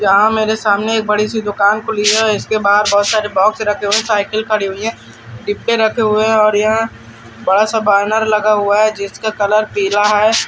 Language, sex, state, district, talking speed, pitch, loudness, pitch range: Hindi, male, Bihar, Araria, 170 wpm, 210 Hz, -14 LUFS, 205-220 Hz